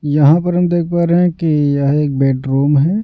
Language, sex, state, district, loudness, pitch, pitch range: Hindi, male, Bihar, Patna, -14 LUFS, 150 Hz, 140-175 Hz